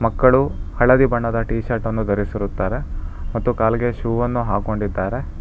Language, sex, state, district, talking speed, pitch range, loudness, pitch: Kannada, male, Karnataka, Bangalore, 110 wpm, 100-120 Hz, -20 LUFS, 115 Hz